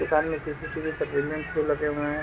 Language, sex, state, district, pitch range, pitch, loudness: Hindi, male, Jharkhand, Sahebganj, 150-155 Hz, 155 Hz, -28 LUFS